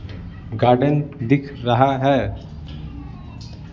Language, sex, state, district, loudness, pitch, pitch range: Hindi, male, Bihar, Patna, -19 LUFS, 120 Hz, 90-140 Hz